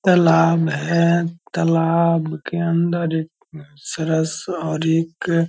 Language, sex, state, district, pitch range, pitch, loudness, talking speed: Hindi, male, Bihar, Purnia, 160-170 Hz, 165 Hz, -19 LUFS, 110 wpm